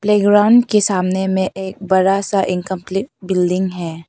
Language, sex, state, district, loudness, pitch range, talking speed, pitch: Hindi, female, Arunachal Pradesh, Papum Pare, -16 LUFS, 185-205 Hz, 145 wpm, 190 Hz